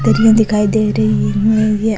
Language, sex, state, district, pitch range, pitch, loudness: Rajasthani, female, Rajasthan, Nagaur, 205-220 Hz, 215 Hz, -13 LUFS